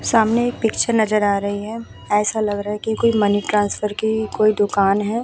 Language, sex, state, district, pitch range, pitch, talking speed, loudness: Hindi, female, Bihar, Vaishali, 205-225 Hz, 215 Hz, 205 wpm, -19 LUFS